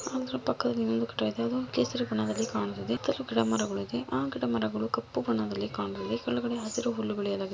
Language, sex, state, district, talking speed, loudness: Kannada, female, Karnataka, Mysore, 90 wpm, -31 LUFS